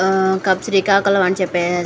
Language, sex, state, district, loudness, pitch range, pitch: Telugu, female, Andhra Pradesh, Srikakulam, -16 LUFS, 185-195 Hz, 190 Hz